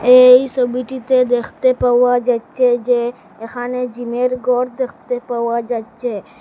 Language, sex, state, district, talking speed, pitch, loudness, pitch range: Bengali, female, Assam, Hailakandi, 110 wpm, 245 Hz, -16 LUFS, 240-250 Hz